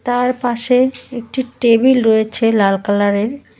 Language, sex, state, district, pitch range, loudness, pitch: Bengali, female, West Bengal, Cooch Behar, 220-250 Hz, -15 LUFS, 240 Hz